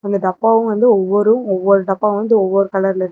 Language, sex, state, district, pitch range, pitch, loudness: Tamil, female, Tamil Nadu, Namakkal, 195-215 Hz, 200 Hz, -15 LUFS